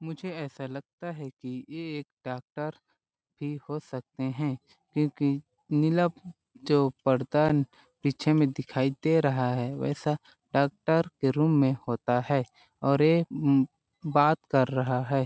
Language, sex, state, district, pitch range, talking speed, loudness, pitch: Hindi, male, Chhattisgarh, Balrampur, 135-155 Hz, 140 wpm, -28 LUFS, 145 Hz